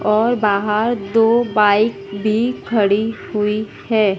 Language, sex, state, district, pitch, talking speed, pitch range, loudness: Hindi, female, Madhya Pradesh, Dhar, 215 Hz, 115 wpm, 205-225 Hz, -17 LUFS